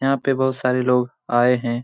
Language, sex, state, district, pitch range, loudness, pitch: Hindi, male, Bihar, Jamui, 125-130 Hz, -20 LUFS, 125 Hz